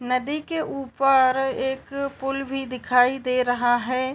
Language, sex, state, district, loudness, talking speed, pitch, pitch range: Hindi, female, Uttar Pradesh, Varanasi, -23 LUFS, 145 wpm, 265 Hz, 255-275 Hz